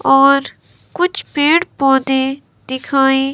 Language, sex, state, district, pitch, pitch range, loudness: Hindi, female, Himachal Pradesh, Shimla, 275 Hz, 270-290 Hz, -14 LUFS